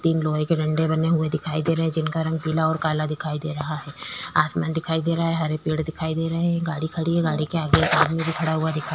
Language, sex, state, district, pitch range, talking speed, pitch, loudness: Hindi, female, Uttarakhand, Tehri Garhwal, 155-160 Hz, 295 wpm, 160 Hz, -23 LUFS